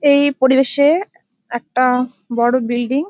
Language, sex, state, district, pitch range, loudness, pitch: Bengali, female, West Bengal, Dakshin Dinajpur, 240-285 Hz, -16 LUFS, 260 Hz